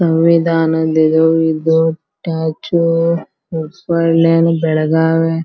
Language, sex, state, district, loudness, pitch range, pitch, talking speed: Kannada, female, Karnataka, Belgaum, -14 LUFS, 160-165 Hz, 165 Hz, 65 wpm